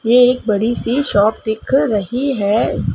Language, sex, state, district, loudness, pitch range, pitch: Hindi, female, Madhya Pradesh, Dhar, -16 LUFS, 215-255 Hz, 235 Hz